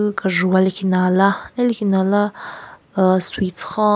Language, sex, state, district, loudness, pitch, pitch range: Rengma, female, Nagaland, Kohima, -18 LUFS, 190 Hz, 185-205 Hz